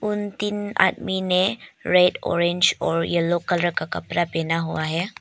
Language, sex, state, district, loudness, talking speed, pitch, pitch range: Hindi, female, Arunachal Pradesh, Papum Pare, -22 LUFS, 160 wpm, 175 Hz, 170-195 Hz